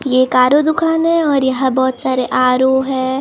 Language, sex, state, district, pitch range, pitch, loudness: Hindi, male, Maharashtra, Gondia, 255-290 Hz, 260 Hz, -14 LUFS